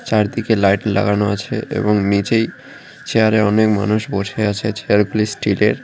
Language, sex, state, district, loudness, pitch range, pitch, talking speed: Bengali, male, West Bengal, Cooch Behar, -17 LUFS, 100-110 Hz, 105 Hz, 165 wpm